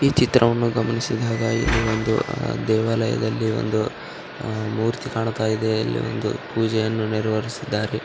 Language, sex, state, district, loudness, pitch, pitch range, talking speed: Kannada, male, Karnataka, Raichur, -22 LUFS, 110 Hz, 110-115 Hz, 105 wpm